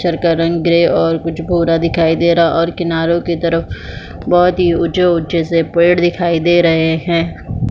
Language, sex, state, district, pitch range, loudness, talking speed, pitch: Hindi, female, Chhattisgarh, Bilaspur, 165-170 Hz, -14 LUFS, 200 wpm, 170 Hz